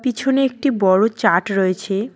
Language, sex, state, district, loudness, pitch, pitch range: Bengali, female, West Bengal, Cooch Behar, -17 LUFS, 215 Hz, 190-260 Hz